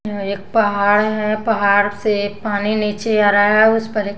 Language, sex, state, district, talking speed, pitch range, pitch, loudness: Hindi, female, Bihar, West Champaran, 185 wpm, 205-215 Hz, 210 Hz, -16 LUFS